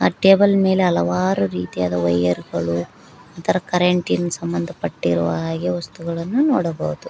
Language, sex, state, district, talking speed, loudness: Kannada, female, Karnataka, Koppal, 125 wpm, -19 LUFS